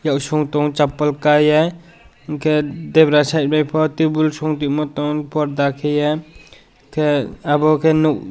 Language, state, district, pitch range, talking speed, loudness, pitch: Kokborok, Tripura, West Tripura, 150-155 Hz, 150 wpm, -17 LUFS, 150 Hz